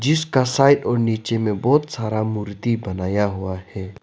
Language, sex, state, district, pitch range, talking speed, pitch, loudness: Hindi, male, Arunachal Pradesh, Lower Dibang Valley, 100-125 Hz, 165 wpm, 110 Hz, -20 LUFS